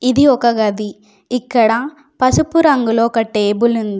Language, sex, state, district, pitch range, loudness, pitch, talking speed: Telugu, female, Telangana, Komaram Bheem, 215-255 Hz, -14 LUFS, 235 Hz, 135 wpm